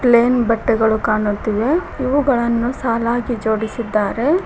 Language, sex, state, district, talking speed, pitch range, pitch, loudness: Kannada, female, Karnataka, Koppal, 80 wpm, 220-250 Hz, 235 Hz, -17 LUFS